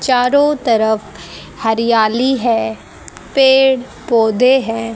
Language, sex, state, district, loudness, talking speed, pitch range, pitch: Hindi, female, Haryana, Charkhi Dadri, -14 LUFS, 85 wpm, 220-260 Hz, 230 Hz